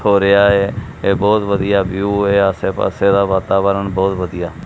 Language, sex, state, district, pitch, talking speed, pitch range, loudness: Punjabi, male, Punjab, Kapurthala, 100 Hz, 180 wpm, 95-100 Hz, -15 LUFS